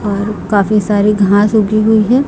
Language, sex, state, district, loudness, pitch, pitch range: Hindi, female, Chhattisgarh, Raipur, -12 LUFS, 210 Hz, 205-215 Hz